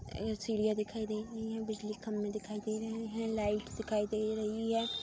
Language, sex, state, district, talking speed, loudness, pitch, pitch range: Hindi, female, Bihar, Vaishali, 215 wpm, -36 LUFS, 215 Hz, 210-225 Hz